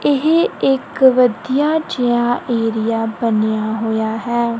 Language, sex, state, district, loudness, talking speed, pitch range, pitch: Punjabi, female, Punjab, Kapurthala, -16 LUFS, 105 wpm, 225-265 Hz, 240 Hz